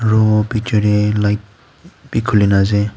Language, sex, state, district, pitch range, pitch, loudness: Nagamese, male, Nagaland, Kohima, 105-110 Hz, 105 Hz, -15 LUFS